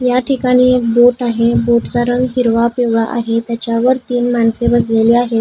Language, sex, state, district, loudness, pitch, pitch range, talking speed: Marathi, female, Maharashtra, Gondia, -13 LUFS, 240 Hz, 230-250 Hz, 165 wpm